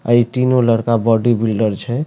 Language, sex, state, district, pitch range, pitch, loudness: Maithili, male, Bihar, Supaul, 115-120 Hz, 115 Hz, -15 LUFS